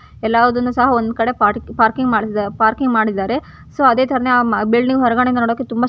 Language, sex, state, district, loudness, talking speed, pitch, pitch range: Kannada, female, Karnataka, Gulbarga, -16 LUFS, 165 wpm, 240 Hz, 220-250 Hz